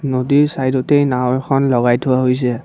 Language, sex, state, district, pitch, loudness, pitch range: Assamese, female, Assam, Kamrup Metropolitan, 130 Hz, -15 LUFS, 125-135 Hz